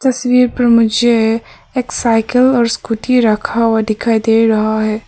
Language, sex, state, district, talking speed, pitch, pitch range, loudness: Hindi, female, Arunachal Pradesh, Papum Pare, 155 wpm, 230 Hz, 220-245 Hz, -13 LUFS